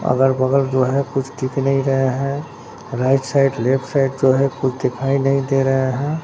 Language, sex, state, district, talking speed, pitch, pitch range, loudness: Hindi, male, Bihar, Katihar, 200 wpm, 135 Hz, 130-135 Hz, -18 LUFS